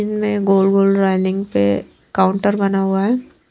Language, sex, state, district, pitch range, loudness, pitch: Hindi, female, Maharashtra, Washim, 190-205 Hz, -17 LUFS, 195 Hz